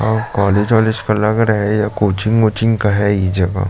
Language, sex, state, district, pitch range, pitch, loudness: Hindi, male, Chhattisgarh, Jashpur, 100-110 Hz, 105 Hz, -15 LUFS